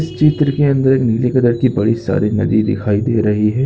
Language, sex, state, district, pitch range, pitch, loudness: Hindi, male, Chhattisgarh, Raigarh, 105-135 Hz, 115 Hz, -15 LUFS